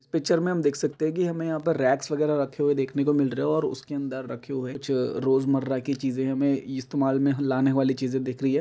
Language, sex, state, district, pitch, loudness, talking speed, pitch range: Hindi, male, Bihar, Jamui, 140 Hz, -26 LUFS, 235 wpm, 135-150 Hz